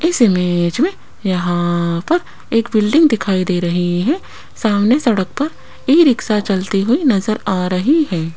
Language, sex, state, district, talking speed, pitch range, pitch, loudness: Hindi, female, Rajasthan, Jaipur, 160 wpm, 180-275 Hz, 210 Hz, -16 LUFS